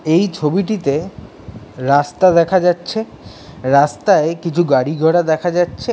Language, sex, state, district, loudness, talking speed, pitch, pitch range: Bengali, male, West Bengal, Kolkata, -15 LUFS, 100 wpm, 160 Hz, 140-175 Hz